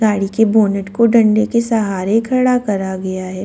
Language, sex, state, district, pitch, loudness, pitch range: Hindi, female, Delhi, New Delhi, 215 Hz, -15 LUFS, 195-230 Hz